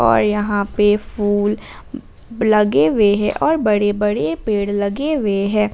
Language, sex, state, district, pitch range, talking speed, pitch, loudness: Hindi, female, Jharkhand, Garhwa, 205-210 Hz, 145 wpm, 210 Hz, -17 LUFS